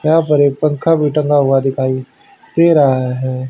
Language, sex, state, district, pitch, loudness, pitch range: Hindi, male, Haryana, Charkhi Dadri, 145 Hz, -14 LUFS, 130-160 Hz